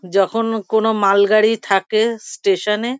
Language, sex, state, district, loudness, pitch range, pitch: Bengali, female, West Bengal, Kolkata, -17 LUFS, 195-225 Hz, 215 Hz